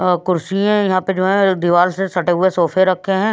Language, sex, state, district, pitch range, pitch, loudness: Hindi, female, Haryana, Rohtak, 180-195 Hz, 185 Hz, -16 LUFS